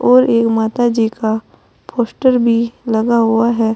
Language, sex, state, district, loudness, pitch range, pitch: Hindi, female, Uttar Pradesh, Saharanpur, -15 LUFS, 225-240 Hz, 230 Hz